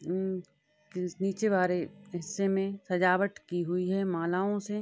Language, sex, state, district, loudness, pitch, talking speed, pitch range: Hindi, female, Uttar Pradesh, Deoria, -31 LUFS, 185 Hz, 150 wpm, 180-195 Hz